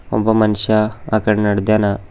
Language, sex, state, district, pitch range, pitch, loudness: Kannada, male, Karnataka, Bidar, 105-110 Hz, 105 Hz, -16 LUFS